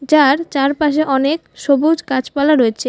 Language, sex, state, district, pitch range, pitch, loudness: Bengali, female, West Bengal, Alipurduar, 270-305 Hz, 285 Hz, -15 LUFS